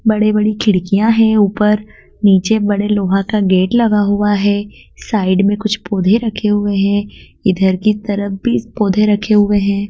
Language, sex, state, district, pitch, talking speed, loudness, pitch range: Hindi, female, Madhya Pradesh, Dhar, 205 Hz, 170 wpm, -14 LUFS, 200-215 Hz